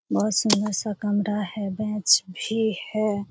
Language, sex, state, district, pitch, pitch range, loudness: Hindi, female, Bihar, Jamui, 210 Hz, 200-215 Hz, -24 LUFS